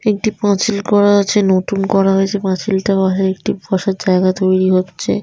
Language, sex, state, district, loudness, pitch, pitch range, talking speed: Bengali, female, West Bengal, Dakshin Dinajpur, -15 LUFS, 195 Hz, 185-200 Hz, 195 wpm